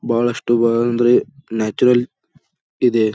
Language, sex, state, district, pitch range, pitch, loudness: Kannada, male, Karnataka, Bijapur, 115-120 Hz, 120 Hz, -17 LUFS